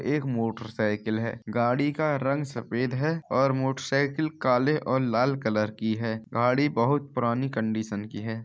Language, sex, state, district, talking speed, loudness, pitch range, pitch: Hindi, male, Bihar, Samastipur, 170 wpm, -27 LUFS, 110-135 Hz, 125 Hz